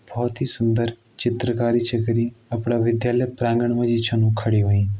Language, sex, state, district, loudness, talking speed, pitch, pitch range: Garhwali, male, Uttarakhand, Tehri Garhwal, -22 LUFS, 170 wpm, 115 Hz, 115-120 Hz